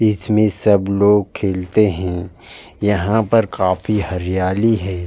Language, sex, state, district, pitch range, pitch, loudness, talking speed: Hindi, male, Uttar Pradesh, Jalaun, 90-105 Hz, 100 Hz, -17 LUFS, 120 wpm